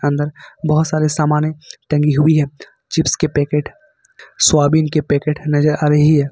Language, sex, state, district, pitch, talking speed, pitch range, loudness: Hindi, male, Jharkhand, Ranchi, 150 Hz, 160 wpm, 145-155 Hz, -16 LUFS